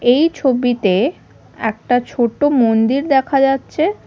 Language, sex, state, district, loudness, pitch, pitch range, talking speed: Bengali, female, Odisha, Khordha, -16 LUFS, 255 Hz, 235-280 Hz, 105 wpm